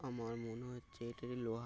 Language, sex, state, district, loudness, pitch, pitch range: Bengali, male, West Bengal, North 24 Parganas, -46 LUFS, 120 Hz, 115-125 Hz